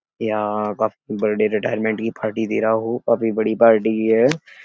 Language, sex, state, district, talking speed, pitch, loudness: Hindi, male, Uttar Pradesh, Etah, 170 wpm, 110 Hz, -19 LUFS